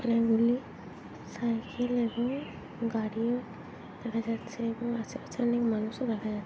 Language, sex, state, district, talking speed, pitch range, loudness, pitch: Bengali, female, West Bengal, Jhargram, 110 wpm, 225-240 Hz, -31 LUFS, 230 Hz